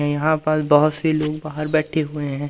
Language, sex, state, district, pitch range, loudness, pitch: Hindi, male, Madhya Pradesh, Umaria, 145-155 Hz, -20 LUFS, 155 Hz